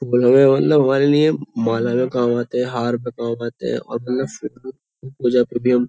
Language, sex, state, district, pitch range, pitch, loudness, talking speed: Hindi, male, Uttar Pradesh, Jyotiba Phule Nagar, 120-130 Hz, 125 Hz, -18 LUFS, 80 wpm